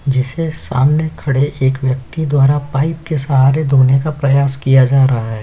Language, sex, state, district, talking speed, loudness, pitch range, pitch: Hindi, male, Chhattisgarh, Korba, 175 wpm, -14 LUFS, 130-150 Hz, 135 Hz